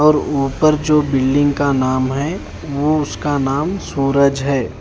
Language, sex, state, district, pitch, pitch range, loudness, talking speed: Hindi, male, Haryana, Charkhi Dadri, 140 Hz, 135-150 Hz, -17 LUFS, 150 wpm